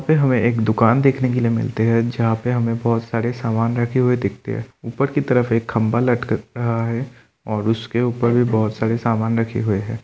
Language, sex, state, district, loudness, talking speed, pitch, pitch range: Hindi, male, Bihar, Kishanganj, -19 LUFS, 215 wpm, 115 Hz, 115-125 Hz